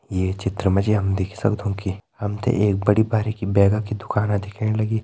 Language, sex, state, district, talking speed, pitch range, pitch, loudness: Hindi, male, Uttarakhand, Tehri Garhwal, 215 wpm, 100-110 Hz, 105 Hz, -22 LUFS